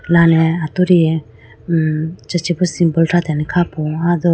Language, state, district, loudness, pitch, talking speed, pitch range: Idu Mishmi, Arunachal Pradesh, Lower Dibang Valley, -16 LUFS, 165 Hz, 150 wpm, 155-175 Hz